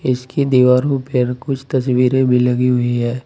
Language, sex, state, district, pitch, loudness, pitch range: Hindi, male, Uttar Pradesh, Saharanpur, 125 Hz, -16 LUFS, 125-130 Hz